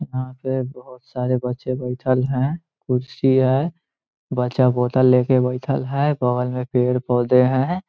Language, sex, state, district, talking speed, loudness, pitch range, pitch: Hindi, male, Bihar, Muzaffarpur, 145 wpm, -20 LUFS, 125-135 Hz, 130 Hz